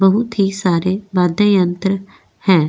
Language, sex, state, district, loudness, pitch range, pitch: Hindi, female, Goa, North and South Goa, -16 LUFS, 180-195 Hz, 195 Hz